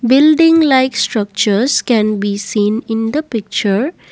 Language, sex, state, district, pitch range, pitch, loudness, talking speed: English, female, Assam, Kamrup Metropolitan, 210-265 Hz, 225 Hz, -14 LUFS, 130 wpm